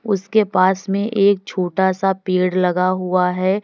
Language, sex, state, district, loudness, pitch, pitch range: Hindi, female, Uttar Pradesh, Lalitpur, -18 LUFS, 190 Hz, 185-200 Hz